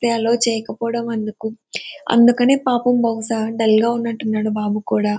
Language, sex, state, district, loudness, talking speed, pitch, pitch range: Telugu, female, Andhra Pradesh, Anantapur, -18 LUFS, 125 wpm, 230 Hz, 220-235 Hz